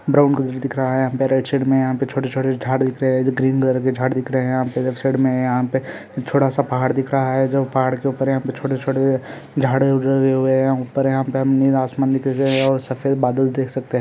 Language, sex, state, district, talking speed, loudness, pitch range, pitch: Hindi, male, Jharkhand, Sahebganj, 275 wpm, -19 LUFS, 130-135 Hz, 135 Hz